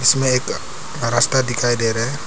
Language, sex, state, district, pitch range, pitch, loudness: Hindi, male, Arunachal Pradesh, Papum Pare, 120-130 Hz, 125 Hz, -18 LUFS